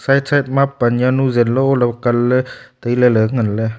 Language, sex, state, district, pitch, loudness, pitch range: Wancho, male, Arunachal Pradesh, Longding, 125 Hz, -15 LUFS, 120-135 Hz